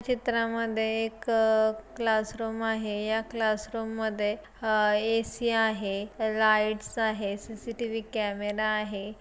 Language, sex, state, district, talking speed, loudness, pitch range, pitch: Marathi, female, Maharashtra, Solapur, 100 wpm, -28 LUFS, 215-225 Hz, 220 Hz